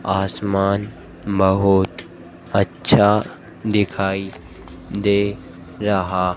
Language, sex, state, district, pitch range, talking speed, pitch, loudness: Hindi, female, Madhya Pradesh, Dhar, 90-100 Hz, 55 wpm, 95 Hz, -19 LUFS